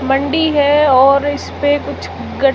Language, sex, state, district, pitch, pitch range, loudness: Hindi, male, Rajasthan, Jaisalmer, 285 Hz, 275-290 Hz, -13 LUFS